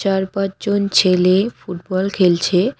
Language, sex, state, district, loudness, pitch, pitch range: Bengali, female, West Bengal, Cooch Behar, -17 LUFS, 190 Hz, 180-200 Hz